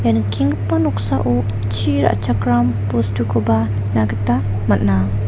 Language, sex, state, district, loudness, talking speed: Garo, female, Meghalaya, South Garo Hills, -18 LUFS, 100 wpm